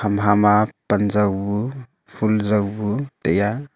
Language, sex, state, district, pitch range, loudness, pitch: Wancho, male, Arunachal Pradesh, Longding, 105-110 Hz, -20 LUFS, 105 Hz